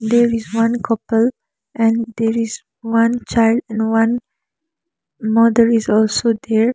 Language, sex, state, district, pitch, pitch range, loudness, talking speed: English, female, Sikkim, Gangtok, 230 Hz, 225-235 Hz, -17 LUFS, 135 wpm